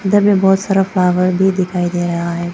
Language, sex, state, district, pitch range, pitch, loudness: Hindi, female, Arunachal Pradesh, Papum Pare, 175-195 Hz, 185 Hz, -15 LUFS